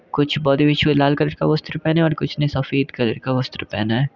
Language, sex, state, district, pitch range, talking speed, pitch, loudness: Hindi, male, Uttar Pradesh, Varanasi, 135-155 Hz, 230 wpm, 145 Hz, -19 LUFS